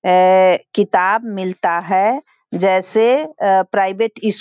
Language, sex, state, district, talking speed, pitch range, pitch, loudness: Hindi, female, Bihar, Sitamarhi, 120 wpm, 185-220 Hz, 195 Hz, -15 LUFS